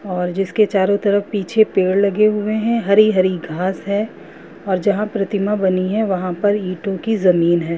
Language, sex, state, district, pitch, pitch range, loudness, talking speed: Hindi, female, Bihar, Gopalganj, 200 Hz, 185-210 Hz, -17 LUFS, 160 wpm